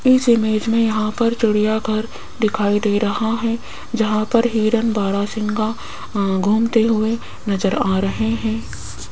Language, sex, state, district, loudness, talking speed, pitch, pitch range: Hindi, female, Rajasthan, Jaipur, -19 LUFS, 140 wpm, 215 Hz, 200-225 Hz